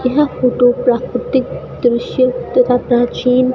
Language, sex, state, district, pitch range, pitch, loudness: Hindi, female, Rajasthan, Bikaner, 245-255 Hz, 250 Hz, -15 LUFS